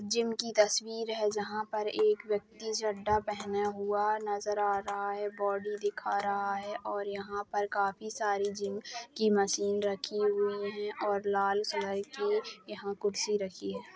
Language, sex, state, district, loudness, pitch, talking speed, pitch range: Hindi, female, Jharkhand, Sahebganj, -32 LUFS, 205 Hz, 165 wpm, 200-215 Hz